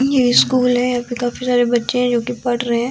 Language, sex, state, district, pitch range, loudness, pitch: Hindi, female, Uttar Pradesh, Jyotiba Phule Nagar, 240-250 Hz, -17 LUFS, 245 Hz